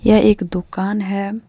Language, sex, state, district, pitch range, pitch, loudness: Hindi, female, Jharkhand, Deoghar, 190-215 Hz, 200 Hz, -18 LUFS